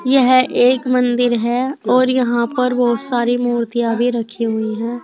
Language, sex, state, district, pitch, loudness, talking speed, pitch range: Hindi, female, Uttar Pradesh, Saharanpur, 245 Hz, -16 LUFS, 165 wpm, 235-255 Hz